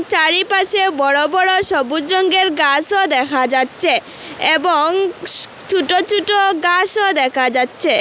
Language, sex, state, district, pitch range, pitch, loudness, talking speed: Bengali, female, Assam, Hailakandi, 290-380 Hz, 350 Hz, -14 LUFS, 105 wpm